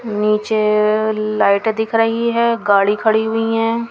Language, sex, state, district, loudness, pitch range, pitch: Hindi, female, Punjab, Kapurthala, -16 LUFS, 210-225 Hz, 220 Hz